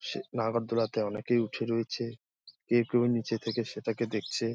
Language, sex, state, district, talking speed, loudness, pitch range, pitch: Bengali, male, West Bengal, Dakshin Dinajpur, 170 wpm, -31 LUFS, 115-120 Hz, 115 Hz